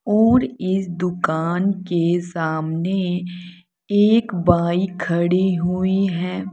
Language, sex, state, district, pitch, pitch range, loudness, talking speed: Hindi, female, Uttar Pradesh, Saharanpur, 180 Hz, 175-190 Hz, -20 LUFS, 90 wpm